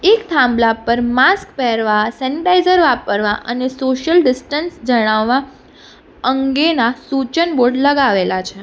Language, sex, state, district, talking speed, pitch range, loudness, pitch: Gujarati, female, Gujarat, Valsad, 110 wpm, 230-300 Hz, -15 LUFS, 260 Hz